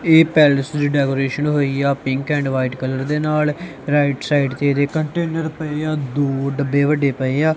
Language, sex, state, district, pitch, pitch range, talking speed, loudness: Punjabi, male, Punjab, Kapurthala, 145 Hz, 135-150 Hz, 180 wpm, -18 LUFS